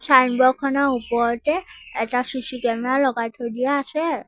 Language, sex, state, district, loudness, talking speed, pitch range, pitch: Assamese, female, Assam, Sonitpur, -21 LUFS, 125 wpm, 235-275 Hz, 255 Hz